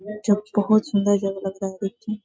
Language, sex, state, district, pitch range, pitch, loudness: Hindi, female, Bihar, Sitamarhi, 195-210 Hz, 205 Hz, -23 LUFS